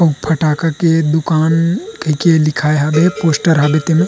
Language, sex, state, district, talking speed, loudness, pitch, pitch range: Chhattisgarhi, male, Chhattisgarh, Rajnandgaon, 160 wpm, -14 LUFS, 160 Hz, 150-165 Hz